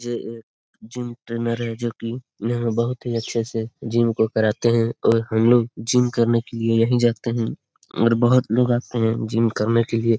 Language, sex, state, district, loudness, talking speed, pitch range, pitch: Hindi, male, Bihar, Darbhanga, -21 LUFS, 205 wpm, 115-120 Hz, 115 Hz